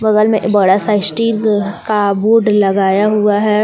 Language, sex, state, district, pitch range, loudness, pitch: Hindi, female, Jharkhand, Palamu, 200-215 Hz, -13 LUFS, 210 Hz